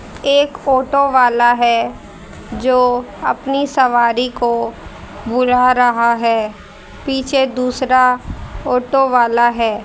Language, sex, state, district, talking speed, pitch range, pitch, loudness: Hindi, female, Haryana, Rohtak, 95 wpm, 235-265 Hz, 250 Hz, -15 LUFS